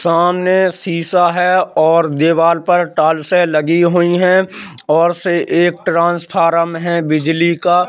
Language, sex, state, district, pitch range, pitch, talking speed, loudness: Hindi, male, Madhya Pradesh, Katni, 165-180 Hz, 170 Hz, 145 wpm, -13 LUFS